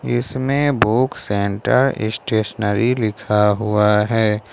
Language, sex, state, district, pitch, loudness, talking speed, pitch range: Hindi, male, Jharkhand, Ranchi, 110 Hz, -18 LUFS, 90 wpm, 105-125 Hz